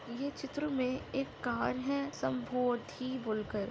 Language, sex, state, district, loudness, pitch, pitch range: Hindi, female, Maharashtra, Nagpur, -36 LUFS, 255 Hz, 230-275 Hz